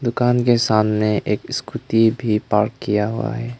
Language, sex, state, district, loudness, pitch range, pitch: Hindi, male, Arunachal Pradesh, Lower Dibang Valley, -19 LUFS, 105-120 Hz, 115 Hz